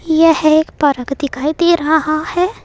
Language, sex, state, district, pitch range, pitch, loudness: Hindi, female, Uttar Pradesh, Saharanpur, 295-330 Hz, 310 Hz, -14 LUFS